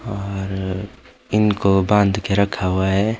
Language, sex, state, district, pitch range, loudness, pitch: Hindi, male, Himachal Pradesh, Shimla, 95-105 Hz, -19 LUFS, 100 Hz